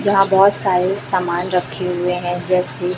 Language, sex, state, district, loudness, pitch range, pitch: Hindi, female, Chhattisgarh, Raipur, -17 LUFS, 180-195 Hz, 180 Hz